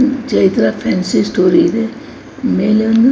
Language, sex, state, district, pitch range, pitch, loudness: Kannada, female, Karnataka, Dakshina Kannada, 225-275 Hz, 255 Hz, -14 LUFS